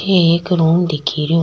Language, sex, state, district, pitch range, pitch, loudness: Rajasthani, female, Rajasthan, Churu, 160-175 Hz, 165 Hz, -15 LUFS